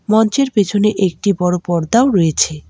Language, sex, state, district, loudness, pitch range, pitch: Bengali, female, West Bengal, Alipurduar, -15 LUFS, 175-215 Hz, 200 Hz